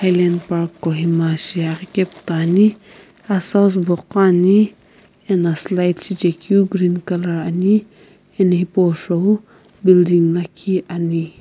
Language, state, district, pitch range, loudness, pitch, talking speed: Sumi, Nagaland, Kohima, 170-195 Hz, -17 LUFS, 180 Hz, 110 wpm